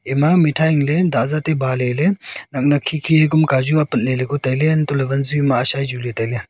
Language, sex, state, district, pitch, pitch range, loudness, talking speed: Wancho, male, Arunachal Pradesh, Longding, 145 Hz, 130-155 Hz, -17 LUFS, 240 wpm